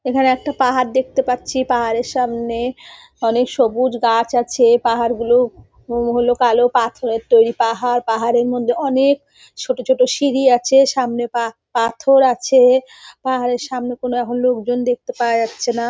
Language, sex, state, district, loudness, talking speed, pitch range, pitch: Bengali, female, West Bengal, North 24 Parganas, -17 LUFS, 145 wpm, 235-255 Hz, 245 Hz